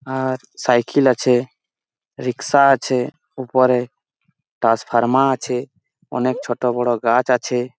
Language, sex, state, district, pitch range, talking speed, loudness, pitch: Bengali, male, West Bengal, Malda, 120-130 Hz, 90 wpm, -18 LUFS, 125 Hz